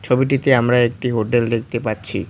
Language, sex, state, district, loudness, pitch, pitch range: Bengali, male, West Bengal, Cooch Behar, -18 LUFS, 120 Hz, 115-125 Hz